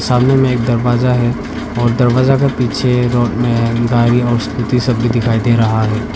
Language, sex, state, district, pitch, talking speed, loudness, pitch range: Hindi, male, Arunachal Pradesh, Papum Pare, 120 Hz, 195 wpm, -14 LUFS, 120-125 Hz